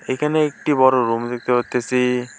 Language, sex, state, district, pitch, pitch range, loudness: Bengali, male, West Bengal, Alipurduar, 125 Hz, 125-130 Hz, -19 LUFS